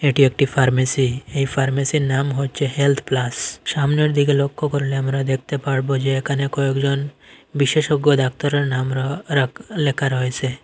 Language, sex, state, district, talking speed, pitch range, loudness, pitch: Bengali, male, Assam, Hailakandi, 135 wpm, 135-145 Hz, -19 LUFS, 140 Hz